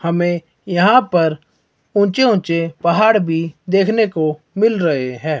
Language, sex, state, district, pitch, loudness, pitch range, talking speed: Hindi, male, Himachal Pradesh, Shimla, 175 Hz, -16 LUFS, 160-205 Hz, 135 wpm